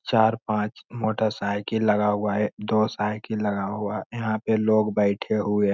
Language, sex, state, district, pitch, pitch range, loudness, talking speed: Hindi, male, Bihar, Jamui, 105 Hz, 105-110 Hz, -25 LUFS, 165 wpm